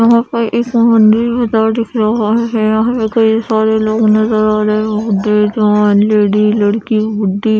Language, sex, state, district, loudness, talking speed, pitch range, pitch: Hindi, female, Odisha, Khordha, -12 LUFS, 125 wpm, 215-225 Hz, 220 Hz